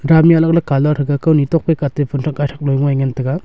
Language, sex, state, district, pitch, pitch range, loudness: Wancho, male, Arunachal Pradesh, Longding, 145 Hz, 140-160 Hz, -15 LUFS